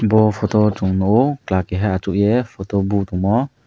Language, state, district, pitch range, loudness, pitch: Kokborok, Tripura, West Tripura, 95-110 Hz, -18 LUFS, 105 Hz